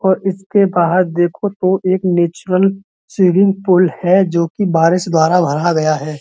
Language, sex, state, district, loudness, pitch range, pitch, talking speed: Hindi, male, Uttar Pradesh, Muzaffarnagar, -14 LUFS, 170-190 Hz, 185 Hz, 155 wpm